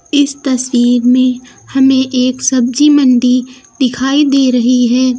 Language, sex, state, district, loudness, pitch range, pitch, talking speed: Hindi, female, Uttar Pradesh, Lucknow, -11 LUFS, 250-270 Hz, 255 Hz, 125 wpm